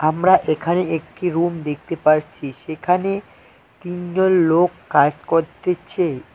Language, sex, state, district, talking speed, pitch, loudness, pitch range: Bengali, male, West Bengal, Cooch Behar, 105 wpm, 170 Hz, -19 LUFS, 155-180 Hz